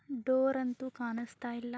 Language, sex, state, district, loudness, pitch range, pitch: Kannada, female, Karnataka, Bijapur, -34 LUFS, 240-260 Hz, 250 Hz